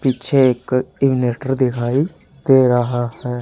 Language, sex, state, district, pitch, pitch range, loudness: Hindi, male, Haryana, Charkhi Dadri, 130 Hz, 120-135 Hz, -17 LUFS